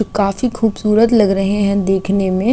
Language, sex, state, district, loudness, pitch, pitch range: Hindi, female, Uttar Pradesh, Gorakhpur, -15 LUFS, 200 Hz, 195-220 Hz